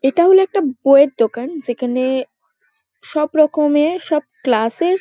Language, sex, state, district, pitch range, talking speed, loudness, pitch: Bengali, female, West Bengal, Kolkata, 255-320 Hz, 145 wpm, -16 LUFS, 295 Hz